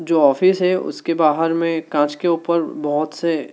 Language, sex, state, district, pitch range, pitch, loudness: Hindi, male, Madhya Pradesh, Dhar, 155-170 Hz, 165 Hz, -18 LUFS